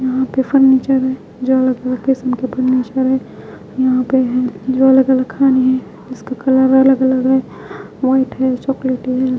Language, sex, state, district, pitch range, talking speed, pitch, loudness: Hindi, female, Haryana, Charkhi Dadri, 255-265 Hz, 165 wpm, 260 Hz, -15 LUFS